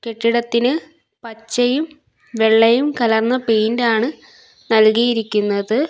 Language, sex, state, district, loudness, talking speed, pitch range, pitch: Malayalam, female, Kerala, Kollam, -17 LUFS, 70 wpm, 225-250 Hz, 230 Hz